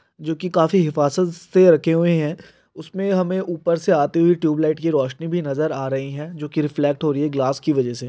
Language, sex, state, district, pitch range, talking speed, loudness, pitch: Hindi, male, Rajasthan, Nagaur, 145-170 Hz, 230 wpm, -20 LUFS, 160 Hz